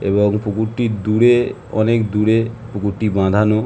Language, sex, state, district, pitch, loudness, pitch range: Bengali, male, West Bengal, Jhargram, 110 Hz, -17 LUFS, 105-115 Hz